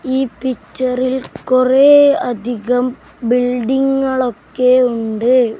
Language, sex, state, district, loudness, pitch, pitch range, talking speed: Malayalam, male, Kerala, Kasaragod, -15 LUFS, 255 Hz, 245-260 Hz, 75 wpm